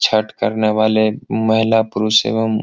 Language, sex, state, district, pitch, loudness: Hindi, male, Bihar, Jahanabad, 110 Hz, -16 LUFS